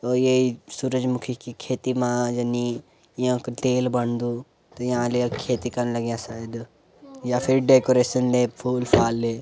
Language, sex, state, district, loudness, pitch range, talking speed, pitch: Garhwali, male, Uttarakhand, Uttarkashi, -23 LUFS, 120-125 Hz, 145 wpm, 125 Hz